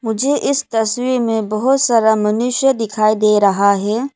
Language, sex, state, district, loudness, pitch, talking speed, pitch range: Hindi, female, Arunachal Pradesh, Lower Dibang Valley, -15 LUFS, 225 Hz, 160 wpm, 215-255 Hz